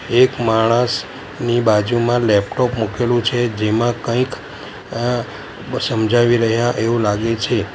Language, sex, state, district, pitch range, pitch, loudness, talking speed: Gujarati, male, Gujarat, Valsad, 110-120 Hz, 120 Hz, -17 LUFS, 115 wpm